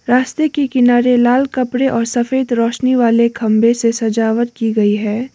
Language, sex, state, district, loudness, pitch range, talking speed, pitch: Hindi, female, Sikkim, Gangtok, -14 LUFS, 230-255 Hz, 170 wpm, 240 Hz